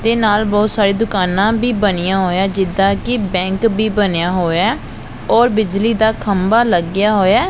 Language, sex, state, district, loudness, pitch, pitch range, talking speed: Punjabi, female, Punjab, Pathankot, -15 LUFS, 205 Hz, 190-220 Hz, 160 wpm